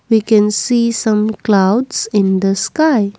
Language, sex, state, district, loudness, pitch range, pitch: English, female, Assam, Kamrup Metropolitan, -14 LUFS, 200-235 Hz, 215 Hz